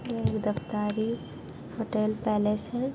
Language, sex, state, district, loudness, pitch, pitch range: Hindi, female, Bihar, Kishanganj, -29 LUFS, 215 Hz, 210-235 Hz